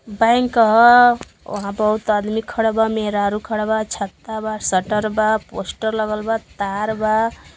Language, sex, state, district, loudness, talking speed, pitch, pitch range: Bhojpuri, female, Uttar Pradesh, Gorakhpur, -18 LUFS, 150 wpm, 215 Hz, 210-225 Hz